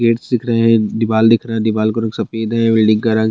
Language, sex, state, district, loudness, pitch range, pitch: Hindi, male, Bihar, Bhagalpur, -15 LUFS, 110-115 Hz, 115 Hz